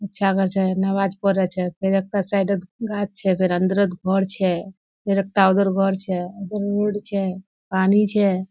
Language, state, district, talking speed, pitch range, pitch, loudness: Surjapuri, Bihar, Kishanganj, 170 wpm, 190-200 Hz, 195 Hz, -21 LUFS